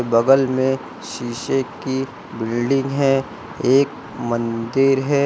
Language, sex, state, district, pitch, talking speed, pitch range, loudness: Hindi, male, Uttar Pradesh, Lucknow, 135 Hz, 105 wpm, 120-135 Hz, -20 LUFS